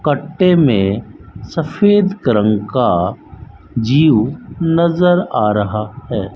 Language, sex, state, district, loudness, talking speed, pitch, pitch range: Hindi, male, Rajasthan, Bikaner, -15 LUFS, 95 wpm, 130 Hz, 105-170 Hz